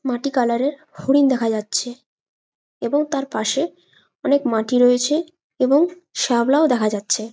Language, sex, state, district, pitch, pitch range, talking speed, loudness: Bengali, female, West Bengal, Jalpaiguri, 260 Hz, 235-290 Hz, 130 wpm, -19 LUFS